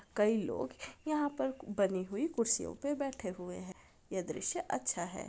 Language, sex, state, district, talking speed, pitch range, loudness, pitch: Hindi, female, Bihar, Araria, 170 wpm, 185-265 Hz, -36 LUFS, 205 Hz